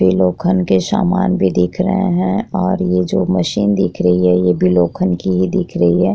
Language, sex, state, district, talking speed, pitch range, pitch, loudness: Hindi, female, Chhattisgarh, Korba, 225 wpm, 90-100 Hz, 95 Hz, -15 LUFS